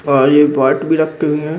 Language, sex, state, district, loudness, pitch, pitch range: Hindi, male, Bihar, Muzaffarpur, -13 LUFS, 150 Hz, 140-155 Hz